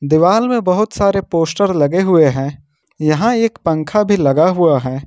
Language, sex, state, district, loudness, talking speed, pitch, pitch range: Hindi, male, Jharkhand, Ranchi, -14 LUFS, 175 wpm, 175 Hz, 155-200 Hz